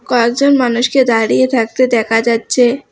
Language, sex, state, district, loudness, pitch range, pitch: Bengali, female, West Bengal, Alipurduar, -13 LUFS, 230-255 Hz, 240 Hz